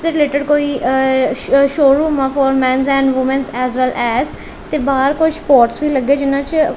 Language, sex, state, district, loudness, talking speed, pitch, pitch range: Punjabi, female, Punjab, Kapurthala, -14 LUFS, 205 wpm, 275 Hz, 265-290 Hz